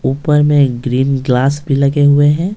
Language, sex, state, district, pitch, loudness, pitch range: Hindi, male, Bihar, Patna, 140 Hz, -12 LUFS, 130-145 Hz